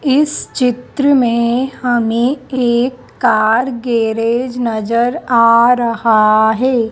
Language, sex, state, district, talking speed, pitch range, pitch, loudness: Hindi, female, Madhya Pradesh, Dhar, 95 wpm, 230-255 Hz, 240 Hz, -14 LUFS